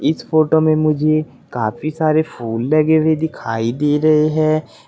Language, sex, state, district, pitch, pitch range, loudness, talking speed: Hindi, male, Uttar Pradesh, Saharanpur, 155 Hz, 145-155 Hz, -16 LUFS, 160 wpm